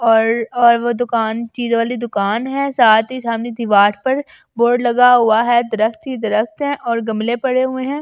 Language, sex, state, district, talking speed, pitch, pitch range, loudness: Hindi, female, Delhi, New Delhi, 195 wpm, 235 Hz, 225-250 Hz, -16 LUFS